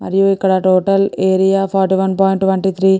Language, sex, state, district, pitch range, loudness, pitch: Telugu, female, Andhra Pradesh, Guntur, 190-195 Hz, -14 LUFS, 190 Hz